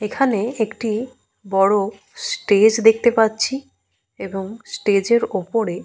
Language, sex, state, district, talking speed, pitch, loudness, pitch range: Bengali, female, Jharkhand, Jamtara, 100 wpm, 220 Hz, -19 LUFS, 205-235 Hz